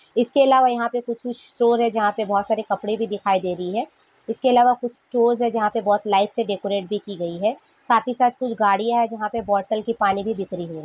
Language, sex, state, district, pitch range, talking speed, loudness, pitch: Hindi, female, Jharkhand, Sahebganj, 200-240 Hz, 260 wpm, -21 LUFS, 225 Hz